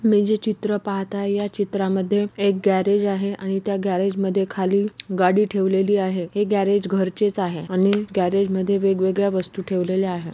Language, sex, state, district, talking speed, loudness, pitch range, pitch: Marathi, female, Maharashtra, Solapur, 175 wpm, -21 LUFS, 190-205 Hz, 195 Hz